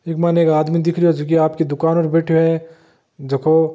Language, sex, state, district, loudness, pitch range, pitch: Marwari, male, Rajasthan, Nagaur, -16 LUFS, 155-165 Hz, 165 Hz